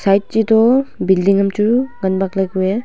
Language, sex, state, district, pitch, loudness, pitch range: Wancho, female, Arunachal Pradesh, Longding, 200 Hz, -15 LUFS, 190-225 Hz